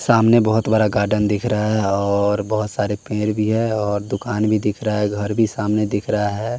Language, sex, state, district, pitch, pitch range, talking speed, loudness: Hindi, male, Bihar, West Champaran, 105 Hz, 105-110 Hz, 230 wpm, -19 LUFS